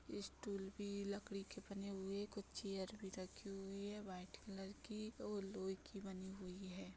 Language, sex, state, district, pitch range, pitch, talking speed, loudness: Hindi, female, Chhattisgarh, Bastar, 190-200 Hz, 195 Hz, 180 wpm, -50 LUFS